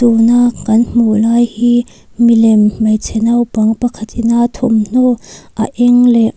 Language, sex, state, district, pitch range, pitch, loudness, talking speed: Mizo, female, Mizoram, Aizawl, 220-240 Hz, 235 Hz, -12 LUFS, 130 wpm